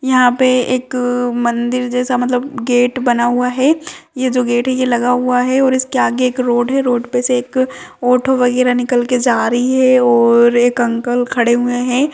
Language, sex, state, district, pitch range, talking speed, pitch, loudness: Hindi, female, Rajasthan, Churu, 245-255 Hz, 200 wpm, 250 Hz, -14 LUFS